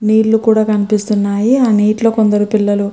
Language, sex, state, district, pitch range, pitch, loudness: Telugu, female, Andhra Pradesh, Krishna, 205-220 Hz, 215 Hz, -13 LUFS